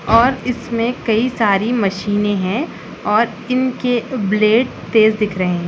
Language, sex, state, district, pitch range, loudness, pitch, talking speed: Hindi, female, Chhattisgarh, Raigarh, 205-240 Hz, -17 LUFS, 220 Hz, 135 wpm